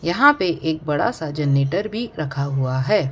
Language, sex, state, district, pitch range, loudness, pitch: Hindi, female, Gujarat, Valsad, 140-180 Hz, -21 LUFS, 155 Hz